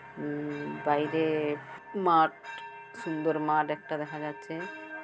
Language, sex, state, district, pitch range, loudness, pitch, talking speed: Bengali, female, West Bengal, Jhargram, 150-195 Hz, -30 LUFS, 155 Hz, 95 wpm